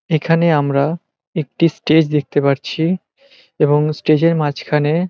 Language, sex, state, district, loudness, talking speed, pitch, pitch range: Bengali, male, West Bengal, North 24 Parganas, -16 LUFS, 130 wpm, 155 Hz, 150-165 Hz